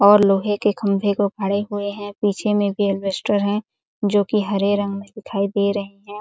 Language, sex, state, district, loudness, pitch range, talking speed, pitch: Hindi, female, Chhattisgarh, Sarguja, -20 LUFS, 200-205 Hz, 210 wpm, 205 Hz